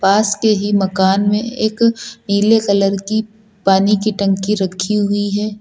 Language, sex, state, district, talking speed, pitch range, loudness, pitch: Hindi, male, Uttar Pradesh, Lucknow, 160 wpm, 195-215 Hz, -16 LUFS, 205 Hz